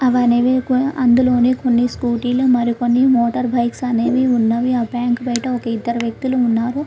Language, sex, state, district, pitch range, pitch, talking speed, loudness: Telugu, female, Andhra Pradesh, Krishna, 240-255 Hz, 245 Hz, 140 wpm, -17 LUFS